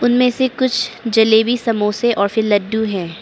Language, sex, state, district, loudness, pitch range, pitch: Hindi, male, Arunachal Pradesh, Papum Pare, -16 LUFS, 210-245 Hz, 230 Hz